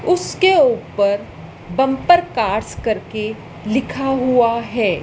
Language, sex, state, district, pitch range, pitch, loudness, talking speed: Hindi, female, Madhya Pradesh, Dhar, 205-270 Hz, 240 Hz, -17 LUFS, 95 wpm